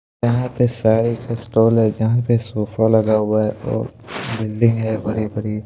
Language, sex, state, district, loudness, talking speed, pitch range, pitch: Hindi, male, Madhya Pradesh, Bhopal, -19 LUFS, 180 wpm, 110-115 Hz, 110 Hz